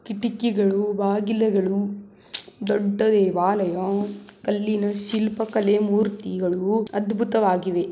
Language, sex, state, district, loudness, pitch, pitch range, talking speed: Kannada, female, Karnataka, Belgaum, -23 LUFS, 205 Hz, 195-215 Hz, 60 wpm